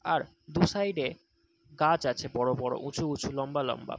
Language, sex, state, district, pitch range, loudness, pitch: Bengali, male, West Bengal, Dakshin Dinajpur, 125-155 Hz, -30 LUFS, 140 Hz